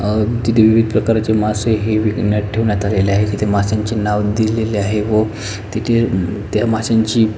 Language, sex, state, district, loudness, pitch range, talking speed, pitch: Marathi, male, Maharashtra, Pune, -16 LUFS, 105-110 Hz, 160 wpm, 110 Hz